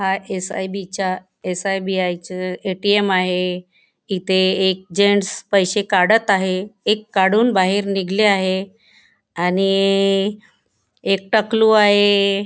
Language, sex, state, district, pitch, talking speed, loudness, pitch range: Marathi, female, Maharashtra, Nagpur, 195 Hz, 105 wpm, -18 LUFS, 185-205 Hz